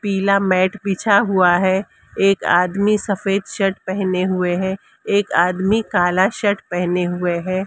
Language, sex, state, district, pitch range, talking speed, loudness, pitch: Hindi, female, Maharashtra, Mumbai Suburban, 180-200 Hz, 150 wpm, -18 LUFS, 190 Hz